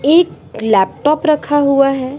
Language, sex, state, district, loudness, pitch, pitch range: Hindi, female, Bihar, Patna, -14 LUFS, 285 Hz, 265-300 Hz